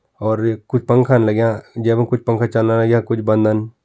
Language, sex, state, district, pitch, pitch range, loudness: Kumaoni, male, Uttarakhand, Tehri Garhwal, 115 Hz, 110-120 Hz, -17 LUFS